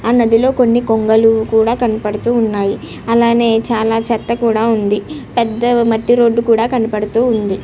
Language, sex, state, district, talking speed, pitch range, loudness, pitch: Telugu, female, Andhra Pradesh, Srikakulam, 140 wpm, 220-235 Hz, -14 LUFS, 230 Hz